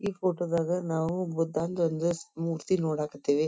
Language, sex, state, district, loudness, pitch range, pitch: Kannada, female, Karnataka, Dharwad, -30 LUFS, 160-175 Hz, 165 Hz